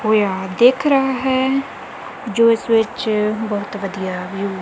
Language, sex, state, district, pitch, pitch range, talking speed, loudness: Punjabi, female, Punjab, Kapurthala, 220 Hz, 200-260 Hz, 145 wpm, -18 LUFS